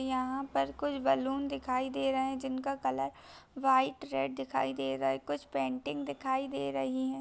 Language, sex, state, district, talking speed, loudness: Hindi, female, Chhattisgarh, Bilaspur, 175 wpm, -33 LUFS